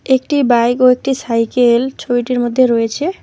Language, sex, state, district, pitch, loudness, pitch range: Bengali, female, West Bengal, Alipurduar, 250 Hz, -14 LUFS, 240-260 Hz